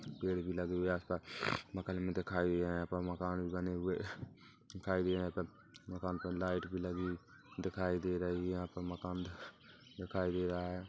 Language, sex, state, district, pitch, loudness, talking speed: Hindi, male, Chhattisgarh, Kabirdham, 90 Hz, -39 LUFS, 195 wpm